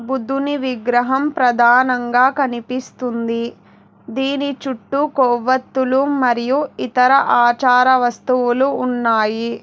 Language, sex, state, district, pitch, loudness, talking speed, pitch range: Telugu, female, Telangana, Hyderabad, 255 Hz, -16 LUFS, 75 wpm, 240-265 Hz